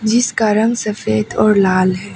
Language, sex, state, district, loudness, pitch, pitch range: Hindi, female, Arunachal Pradesh, Papum Pare, -15 LUFS, 210 Hz, 185-220 Hz